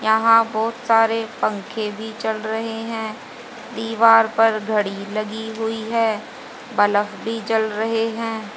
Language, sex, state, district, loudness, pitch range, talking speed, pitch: Hindi, female, Haryana, Jhajjar, -20 LUFS, 215-225 Hz, 135 wpm, 225 Hz